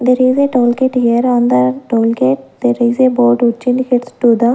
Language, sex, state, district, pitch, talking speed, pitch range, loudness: English, female, Punjab, Fazilka, 240 Hz, 185 wpm, 235-250 Hz, -13 LUFS